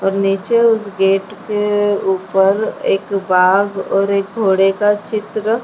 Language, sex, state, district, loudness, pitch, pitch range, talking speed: Hindi, female, Maharashtra, Chandrapur, -16 LUFS, 200 Hz, 195-210 Hz, 150 wpm